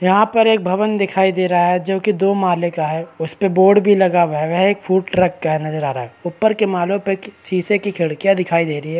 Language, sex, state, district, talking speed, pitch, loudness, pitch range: Hindi, male, Bihar, Araria, 275 wpm, 185 Hz, -17 LUFS, 170-200 Hz